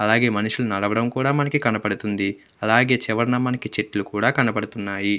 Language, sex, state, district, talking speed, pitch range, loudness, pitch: Telugu, male, Andhra Pradesh, Krishna, 125 wpm, 105-125 Hz, -22 LUFS, 110 Hz